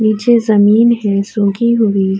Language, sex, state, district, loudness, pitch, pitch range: Urdu, female, Uttar Pradesh, Budaun, -12 LUFS, 215 Hz, 200-235 Hz